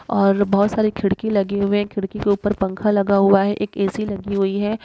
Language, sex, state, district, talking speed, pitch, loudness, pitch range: Hindi, female, Uttar Pradesh, Muzaffarnagar, 235 wpm, 200 Hz, -19 LUFS, 195-205 Hz